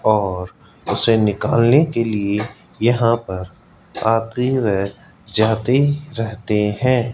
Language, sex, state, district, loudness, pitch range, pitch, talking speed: Hindi, male, Rajasthan, Jaipur, -18 LUFS, 105-120 Hz, 110 Hz, 100 wpm